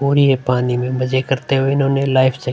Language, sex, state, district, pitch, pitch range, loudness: Hindi, male, Uttar Pradesh, Hamirpur, 130 Hz, 125-135 Hz, -16 LUFS